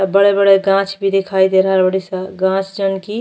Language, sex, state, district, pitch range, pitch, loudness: Bhojpuri, female, Uttar Pradesh, Deoria, 190-195 Hz, 195 Hz, -15 LUFS